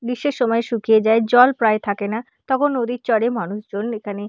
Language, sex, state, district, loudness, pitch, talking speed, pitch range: Bengali, female, West Bengal, Purulia, -19 LUFS, 230 Hz, 180 wpm, 215-245 Hz